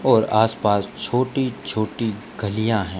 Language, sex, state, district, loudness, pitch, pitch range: Hindi, male, Rajasthan, Bikaner, -20 LUFS, 110 Hz, 105-120 Hz